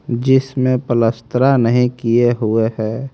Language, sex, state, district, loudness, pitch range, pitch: Hindi, male, Haryana, Rohtak, -16 LUFS, 115-130 Hz, 120 Hz